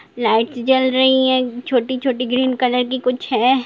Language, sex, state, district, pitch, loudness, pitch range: Hindi, female, Bihar, Sitamarhi, 255 Hz, -17 LUFS, 245-260 Hz